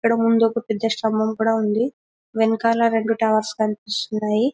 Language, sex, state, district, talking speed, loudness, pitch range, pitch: Telugu, female, Telangana, Karimnagar, 130 wpm, -20 LUFS, 215-230 Hz, 225 Hz